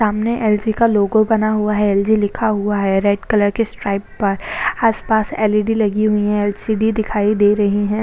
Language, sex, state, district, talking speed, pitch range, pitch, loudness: Hindi, female, Maharashtra, Chandrapur, 240 wpm, 205-220 Hz, 210 Hz, -17 LUFS